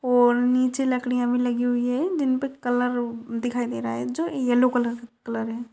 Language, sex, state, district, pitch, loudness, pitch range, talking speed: Hindi, female, Maharashtra, Dhule, 245 Hz, -24 LUFS, 235-255 Hz, 190 wpm